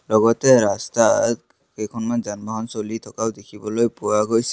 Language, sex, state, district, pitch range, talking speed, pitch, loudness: Assamese, male, Assam, Kamrup Metropolitan, 105-115 Hz, 130 wpm, 110 Hz, -20 LUFS